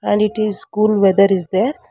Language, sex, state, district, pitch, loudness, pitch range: English, female, Karnataka, Bangalore, 210 Hz, -16 LUFS, 195-215 Hz